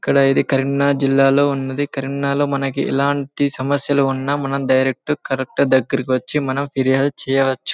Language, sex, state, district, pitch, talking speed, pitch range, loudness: Telugu, male, Telangana, Karimnagar, 135 Hz, 155 wpm, 135-140 Hz, -18 LUFS